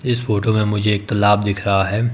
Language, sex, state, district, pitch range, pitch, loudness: Hindi, male, Himachal Pradesh, Shimla, 100-110 Hz, 105 Hz, -18 LUFS